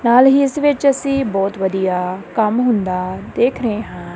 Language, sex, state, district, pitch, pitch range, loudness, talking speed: Punjabi, female, Punjab, Kapurthala, 220 Hz, 190-265 Hz, -17 LUFS, 175 wpm